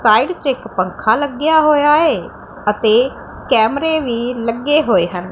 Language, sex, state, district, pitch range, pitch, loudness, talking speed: Punjabi, female, Punjab, Pathankot, 230-315 Hz, 285 Hz, -15 LUFS, 145 wpm